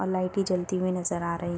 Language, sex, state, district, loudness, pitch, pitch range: Hindi, female, Bihar, Kishanganj, -28 LUFS, 185 Hz, 175-185 Hz